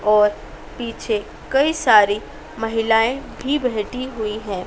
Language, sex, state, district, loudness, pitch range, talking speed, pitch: Hindi, female, Madhya Pradesh, Dhar, -20 LUFS, 210-255 Hz, 115 wpm, 225 Hz